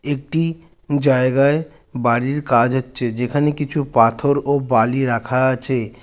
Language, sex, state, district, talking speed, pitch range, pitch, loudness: Bengali, male, West Bengal, Jalpaiguri, 120 wpm, 125-145 Hz, 130 Hz, -18 LUFS